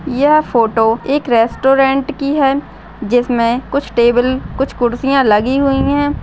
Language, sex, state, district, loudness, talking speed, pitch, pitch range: Hindi, female, Chhattisgarh, Bastar, -14 LUFS, 135 wpm, 265 Hz, 240-275 Hz